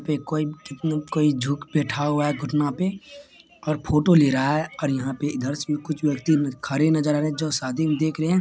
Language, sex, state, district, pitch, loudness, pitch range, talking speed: Maithili, male, Bihar, Supaul, 150 Hz, -23 LUFS, 145-155 Hz, 220 wpm